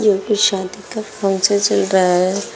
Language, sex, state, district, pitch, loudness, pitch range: Hindi, female, Uttar Pradesh, Shamli, 195 Hz, -16 LUFS, 190-210 Hz